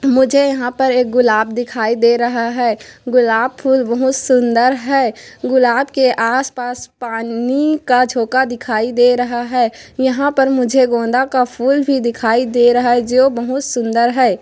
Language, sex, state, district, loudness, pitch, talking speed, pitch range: Hindi, female, Chhattisgarh, Korba, -15 LUFS, 245 Hz, 160 wpm, 235-260 Hz